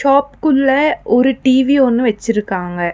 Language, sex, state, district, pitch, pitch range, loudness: Tamil, female, Tamil Nadu, Nilgiris, 260 Hz, 225-275 Hz, -14 LUFS